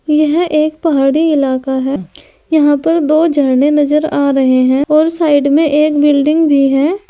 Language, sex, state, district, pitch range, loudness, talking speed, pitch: Hindi, female, Uttar Pradesh, Saharanpur, 275-310 Hz, -12 LUFS, 170 wpm, 295 Hz